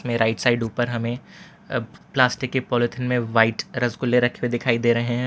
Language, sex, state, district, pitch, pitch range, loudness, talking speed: Hindi, male, Gujarat, Valsad, 120 Hz, 120-125 Hz, -22 LUFS, 170 wpm